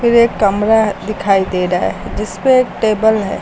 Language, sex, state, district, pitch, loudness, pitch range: Hindi, female, Uttar Pradesh, Lucknow, 215 Hz, -14 LUFS, 195-225 Hz